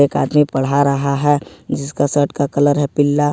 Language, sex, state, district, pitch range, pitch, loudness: Hindi, male, Jharkhand, Ranchi, 140-145 Hz, 145 Hz, -16 LUFS